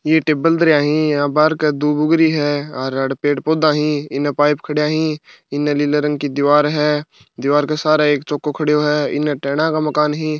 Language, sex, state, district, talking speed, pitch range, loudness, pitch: Marwari, male, Rajasthan, Churu, 220 wpm, 145-155 Hz, -17 LUFS, 150 Hz